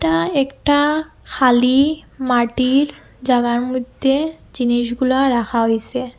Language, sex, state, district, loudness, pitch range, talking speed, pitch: Bengali, female, Assam, Hailakandi, -17 LUFS, 240-275 Hz, 85 wpm, 255 Hz